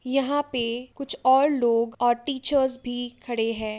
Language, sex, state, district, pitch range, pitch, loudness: Hindi, female, Uttar Pradesh, Jalaun, 235-275 Hz, 250 Hz, -24 LUFS